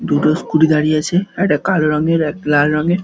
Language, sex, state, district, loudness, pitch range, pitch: Bengali, male, West Bengal, Dakshin Dinajpur, -15 LUFS, 150-175 Hz, 155 Hz